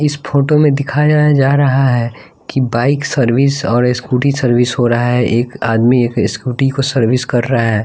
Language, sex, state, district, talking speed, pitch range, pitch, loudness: Hindi, male, Bihar, West Champaran, 190 wpm, 120-140 Hz, 125 Hz, -13 LUFS